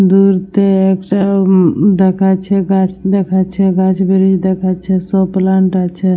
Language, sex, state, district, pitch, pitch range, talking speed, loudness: Bengali, female, West Bengal, Dakshin Dinajpur, 190 Hz, 185-195 Hz, 135 wpm, -12 LUFS